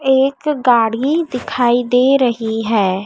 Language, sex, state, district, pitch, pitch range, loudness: Hindi, female, Madhya Pradesh, Dhar, 250 Hz, 225-270 Hz, -15 LUFS